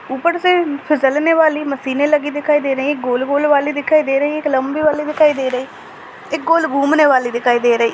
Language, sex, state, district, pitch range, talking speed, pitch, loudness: Hindi, female, Maharashtra, Dhule, 270-305 Hz, 250 wpm, 290 Hz, -15 LUFS